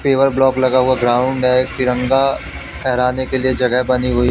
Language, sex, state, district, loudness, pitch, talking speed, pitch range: Hindi, male, Madhya Pradesh, Katni, -15 LUFS, 130 Hz, 180 wpm, 125-130 Hz